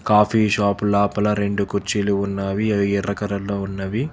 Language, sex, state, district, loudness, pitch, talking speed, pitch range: Telugu, male, Telangana, Hyderabad, -21 LUFS, 100 Hz, 145 wpm, 100-105 Hz